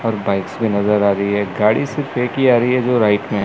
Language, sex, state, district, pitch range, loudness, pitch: Hindi, male, Chandigarh, Chandigarh, 105-125 Hz, -17 LUFS, 110 Hz